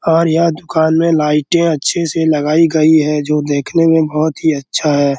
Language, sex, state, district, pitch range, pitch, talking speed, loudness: Hindi, male, Bihar, Araria, 150-165 Hz, 160 Hz, 195 wpm, -13 LUFS